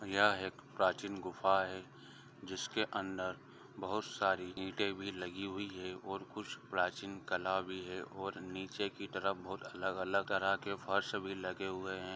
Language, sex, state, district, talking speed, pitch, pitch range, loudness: Hindi, male, Andhra Pradesh, Guntur, 140 wpm, 95 Hz, 95-100 Hz, -38 LUFS